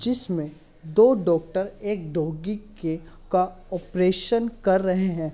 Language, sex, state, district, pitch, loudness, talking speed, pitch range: Hindi, male, Uttar Pradesh, Hamirpur, 185 Hz, -24 LUFS, 125 wpm, 165-210 Hz